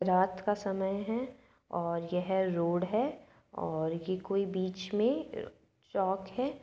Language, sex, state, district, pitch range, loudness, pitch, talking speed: Hindi, female, Uttar Pradesh, Budaun, 185-220 Hz, -33 LUFS, 190 Hz, 135 wpm